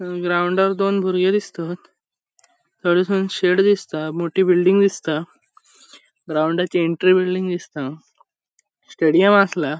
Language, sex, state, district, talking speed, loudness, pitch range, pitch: Konkani, male, Goa, North and South Goa, 90 wpm, -19 LUFS, 165-190 Hz, 180 Hz